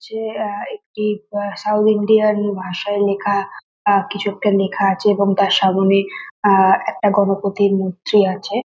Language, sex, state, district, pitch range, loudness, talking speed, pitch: Bengali, female, West Bengal, North 24 Parganas, 195-210 Hz, -17 LUFS, 140 wpm, 205 Hz